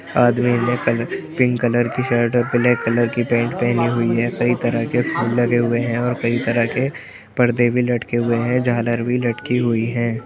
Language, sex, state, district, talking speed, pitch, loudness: Hindi, male, Uttar Pradesh, Jyotiba Phule Nagar, 210 wpm, 120 Hz, -19 LUFS